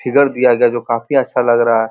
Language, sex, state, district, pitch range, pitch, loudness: Hindi, male, Uttar Pradesh, Muzaffarnagar, 115-130 Hz, 120 Hz, -14 LUFS